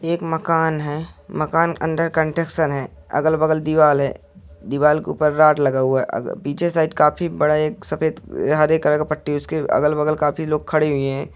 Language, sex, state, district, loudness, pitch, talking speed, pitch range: Hindi, male, Uttar Pradesh, Jalaun, -19 LUFS, 155 Hz, 185 wpm, 150-160 Hz